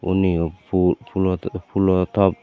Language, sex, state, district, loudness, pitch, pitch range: Chakma, male, Tripura, Dhalai, -21 LUFS, 95 Hz, 90-95 Hz